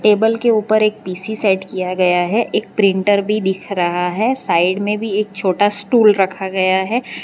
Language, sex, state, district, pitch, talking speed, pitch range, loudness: Hindi, female, Gujarat, Valsad, 200 Hz, 200 wpm, 190-215 Hz, -16 LUFS